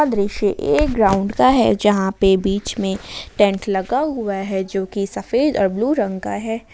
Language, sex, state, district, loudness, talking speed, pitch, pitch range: Hindi, female, Jharkhand, Ranchi, -18 LUFS, 180 wpm, 200 Hz, 195-225 Hz